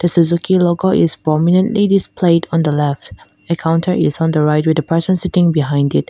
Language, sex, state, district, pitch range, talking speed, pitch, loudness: English, female, Mizoram, Aizawl, 155-180 Hz, 205 wpm, 170 Hz, -14 LUFS